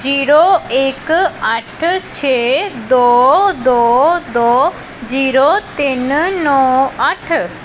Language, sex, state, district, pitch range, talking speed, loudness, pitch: Punjabi, female, Punjab, Pathankot, 250-325 Hz, 85 wpm, -13 LUFS, 270 Hz